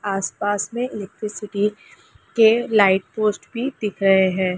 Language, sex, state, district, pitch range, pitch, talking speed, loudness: Hindi, female, Chhattisgarh, Raigarh, 195-220 Hz, 210 Hz, 130 wpm, -20 LUFS